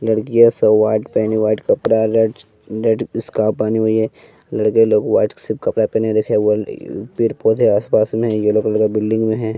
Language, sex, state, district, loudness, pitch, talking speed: Hindi, male, Bihar, West Champaran, -16 LUFS, 110 Hz, 180 wpm